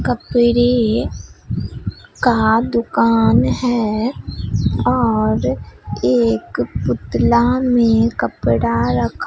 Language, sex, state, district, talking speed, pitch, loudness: Hindi, female, Bihar, Katihar, 65 wpm, 125 Hz, -17 LUFS